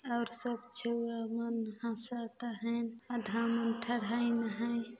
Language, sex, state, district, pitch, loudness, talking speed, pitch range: Chhattisgarhi, female, Chhattisgarh, Balrampur, 235 Hz, -36 LUFS, 85 wpm, 230-235 Hz